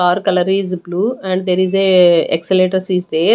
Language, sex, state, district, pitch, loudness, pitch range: English, female, Haryana, Rohtak, 185 Hz, -14 LUFS, 180-190 Hz